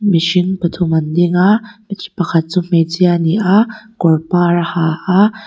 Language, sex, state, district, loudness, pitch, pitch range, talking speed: Mizo, female, Mizoram, Aizawl, -14 LUFS, 180 Hz, 170-200 Hz, 175 wpm